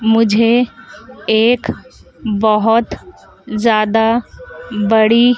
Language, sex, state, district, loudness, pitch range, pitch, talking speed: Hindi, female, Madhya Pradesh, Dhar, -14 LUFS, 220-240 Hz, 225 Hz, 55 wpm